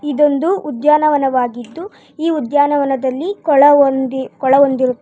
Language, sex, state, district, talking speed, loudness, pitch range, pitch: Kannada, female, Karnataka, Bangalore, 85 wpm, -14 LUFS, 265-300 Hz, 285 Hz